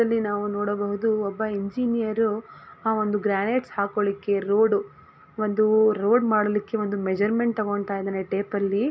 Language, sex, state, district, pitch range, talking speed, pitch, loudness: Kannada, female, Karnataka, Gulbarga, 200-220 Hz, 120 wpm, 210 Hz, -24 LUFS